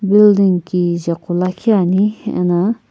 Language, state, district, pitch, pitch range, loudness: Sumi, Nagaland, Kohima, 185 Hz, 175-210 Hz, -15 LUFS